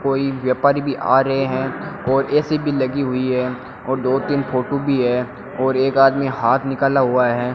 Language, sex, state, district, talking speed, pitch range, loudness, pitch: Hindi, male, Rajasthan, Bikaner, 200 wpm, 130-140 Hz, -18 LUFS, 135 Hz